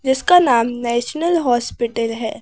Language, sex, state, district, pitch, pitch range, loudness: Hindi, female, Madhya Pradesh, Bhopal, 245 Hz, 235-310 Hz, -17 LUFS